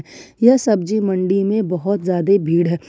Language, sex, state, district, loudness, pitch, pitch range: Hindi, female, Jharkhand, Ranchi, -17 LUFS, 195 Hz, 180-215 Hz